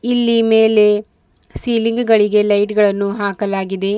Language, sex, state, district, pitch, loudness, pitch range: Kannada, female, Karnataka, Bidar, 210 Hz, -15 LUFS, 205-225 Hz